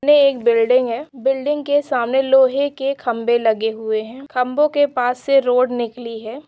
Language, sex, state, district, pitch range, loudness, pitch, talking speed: Hindi, female, Chhattisgarh, Korba, 235-275 Hz, -18 LUFS, 255 Hz, 175 wpm